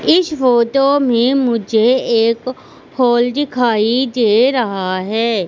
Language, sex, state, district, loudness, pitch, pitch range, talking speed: Hindi, female, Madhya Pradesh, Katni, -14 LUFS, 240 Hz, 225-260 Hz, 110 wpm